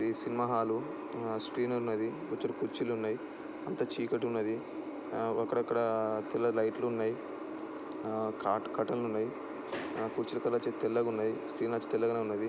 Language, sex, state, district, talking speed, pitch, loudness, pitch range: Telugu, male, Andhra Pradesh, Srikakulam, 155 wpm, 115 Hz, -34 LUFS, 110-115 Hz